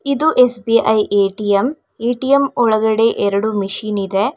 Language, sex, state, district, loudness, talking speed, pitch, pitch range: Kannada, female, Karnataka, Bangalore, -16 LUFS, 110 wpm, 220 Hz, 205-250 Hz